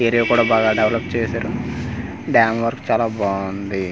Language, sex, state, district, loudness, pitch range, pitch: Telugu, male, Andhra Pradesh, Manyam, -19 LUFS, 100-115 Hz, 110 Hz